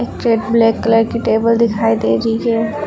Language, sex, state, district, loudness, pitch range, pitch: Hindi, female, Uttar Pradesh, Lucknow, -15 LUFS, 220-230 Hz, 225 Hz